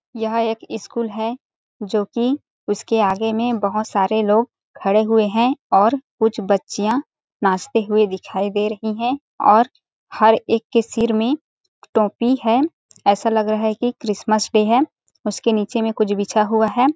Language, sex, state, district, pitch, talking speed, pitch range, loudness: Hindi, female, Chhattisgarh, Balrampur, 220 Hz, 165 wpm, 210-235 Hz, -19 LUFS